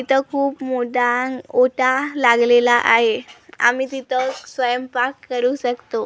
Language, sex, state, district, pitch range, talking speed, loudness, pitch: Marathi, female, Maharashtra, Gondia, 245-265 Hz, 110 wpm, -18 LUFS, 255 Hz